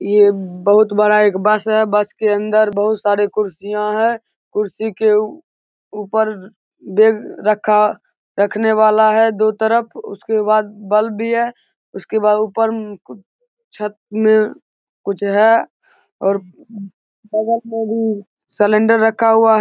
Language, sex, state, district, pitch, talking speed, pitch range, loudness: Hindi, male, Bihar, Begusarai, 215 Hz, 130 wpm, 210-220 Hz, -16 LUFS